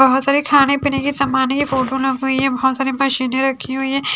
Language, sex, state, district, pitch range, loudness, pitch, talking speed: Hindi, female, Haryana, Charkhi Dadri, 265-275 Hz, -17 LUFS, 270 Hz, 185 wpm